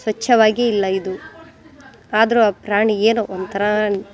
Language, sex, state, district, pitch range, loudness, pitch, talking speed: Kannada, female, Karnataka, Koppal, 200-225 Hz, -17 LUFS, 210 Hz, 115 wpm